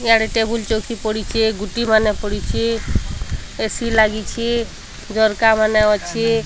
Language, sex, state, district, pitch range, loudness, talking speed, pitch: Odia, female, Odisha, Sambalpur, 215-230 Hz, -18 LUFS, 110 wpm, 220 Hz